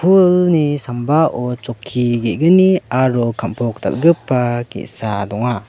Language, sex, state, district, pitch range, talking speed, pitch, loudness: Garo, male, Meghalaya, West Garo Hills, 120-160 Hz, 95 wpm, 125 Hz, -16 LUFS